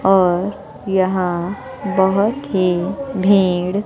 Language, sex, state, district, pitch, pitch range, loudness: Hindi, female, Bihar, West Champaran, 190 Hz, 185-205 Hz, -18 LUFS